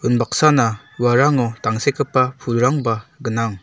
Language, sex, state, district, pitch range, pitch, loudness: Garo, male, Meghalaya, South Garo Hills, 115-140 Hz, 125 Hz, -18 LUFS